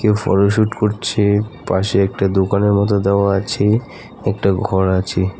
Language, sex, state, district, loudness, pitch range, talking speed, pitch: Bengali, male, West Bengal, Alipurduar, -17 LUFS, 95-105 Hz, 145 wpm, 100 Hz